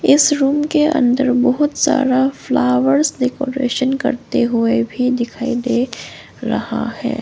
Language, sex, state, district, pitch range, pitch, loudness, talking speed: Hindi, female, Arunachal Pradesh, Longding, 245-280 Hz, 255 Hz, -16 LUFS, 125 wpm